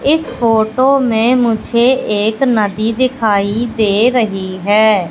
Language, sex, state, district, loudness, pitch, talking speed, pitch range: Hindi, female, Madhya Pradesh, Katni, -13 LUFS, 225 Hz, 115 wpm, 210-250 Hz